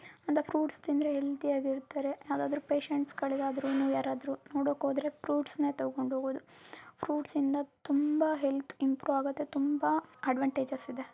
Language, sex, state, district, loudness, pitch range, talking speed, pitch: Kannada, female, Karnataka, Mysore, -33 LUFS, 275-295 Hz, 130 wpm, 280 Hz